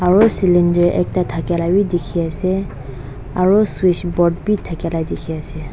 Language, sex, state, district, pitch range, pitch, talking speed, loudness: Nagamese, female, Nagaland, Dimapur, 165-185 Hz, 175 Hz, 180 wpm, -17 LUFS